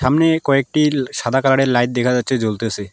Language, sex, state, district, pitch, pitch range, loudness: Bengali, male, West Bengal, Alipurduar, 130 Hz, 120-140 Hz, -17 LUFS